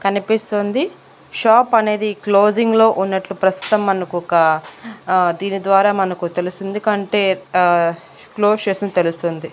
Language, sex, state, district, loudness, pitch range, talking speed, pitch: Telugu, female, Andhra Pradesh, Annamaya, -17 LUFS, 180-210 Hz, 115 wpm, 195 Hz